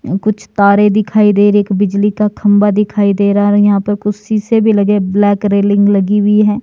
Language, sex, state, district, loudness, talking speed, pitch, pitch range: Hindi, male, Himachal Pradesh, Shimla, -11 LUFS, 225 wpm, 205 Hz, 200-210 Hz